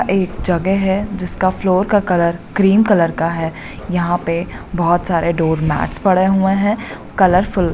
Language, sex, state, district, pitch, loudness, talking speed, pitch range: Hindi, female, Bihar, Bhagalpur, 185 Hz, -16 LUFS, 170 wpm, 170-195 Hz